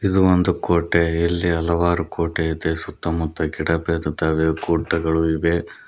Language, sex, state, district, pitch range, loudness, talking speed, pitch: Kannada, male, Karnataka, Koppal, 80-85 Hz, -21 LUFS, 120 wpm, 85 Hz